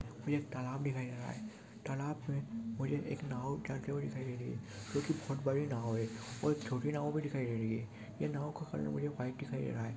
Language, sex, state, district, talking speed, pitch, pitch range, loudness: Hindi, male, Goa, North and South Goa, 235 wpm, 135 Hz, 115-145 Hz, -39 LUFS